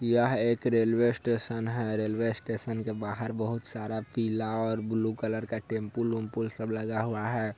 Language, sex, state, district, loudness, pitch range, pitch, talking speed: Hindi, male, Bihar, Sitamarhi, -30 LUFS, 110-115 Hz, 115 Hz, 175 wpm